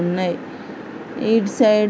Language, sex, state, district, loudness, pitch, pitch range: Telugu, female, Andhra Pradesh, Srikakulam, -20 LUFS, 210 Hz, 180-225 Hz